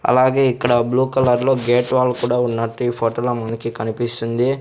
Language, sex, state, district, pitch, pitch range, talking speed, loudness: Telugu, male, Andhra Pradesh, Sri Satya Sai, 120 Hz, 115-125 Hz, 170 wpm, -18 LUFS